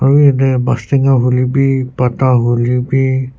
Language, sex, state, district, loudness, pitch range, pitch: Nagamese, male, Nagaland, Kohima, -13 LUFS, 125-135 Hz, 130 Hz